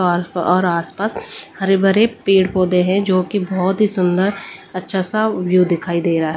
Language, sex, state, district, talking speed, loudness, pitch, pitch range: Hindi, female, Delhi, New Delhi, 190 wpm, -17 LUFS, 185 Hz, 180-195 Hz